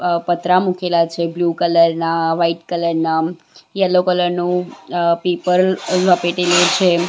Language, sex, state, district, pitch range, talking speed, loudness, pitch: Gujarati, female, Gujarat, Valsad, 170-180 Hz, 110 wpm, -16 LUFS, 175 Hz